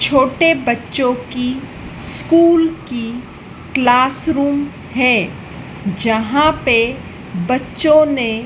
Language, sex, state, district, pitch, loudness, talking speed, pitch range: Hindi, female, Madhya Pradesh, Dhar, 255 Hz, -15 LUFS, 85 wpm, 235-290 Hz